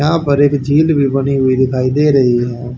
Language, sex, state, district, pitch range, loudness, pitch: Hindi, male, Haryana, Charkhi Dadri, 130-145 Hz, -13 LUFS, 135 Hz